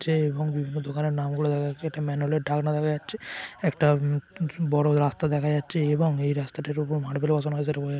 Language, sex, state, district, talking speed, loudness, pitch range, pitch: Bengali, male, West Bengal, Kolkata, 230 wpm, -26 LUFS, 145-155 Hz, 150 Hz